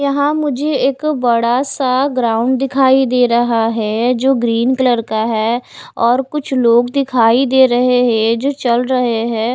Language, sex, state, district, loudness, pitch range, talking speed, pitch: Hindi, female, Bihar, West Champaran, -14 LUFS, 235-270 Hz, 165 wpm, 250 Hz